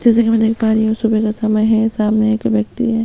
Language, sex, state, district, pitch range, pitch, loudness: Hindi, female, Chhattisgarh, Sukma, 215-225 Hz, 220 Hz, -15 LUFS